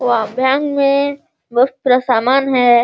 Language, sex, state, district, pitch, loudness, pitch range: Hindi, female, Bihar, Sitamarhi, 255 Hz, -15 LUFS, 245-275 Hz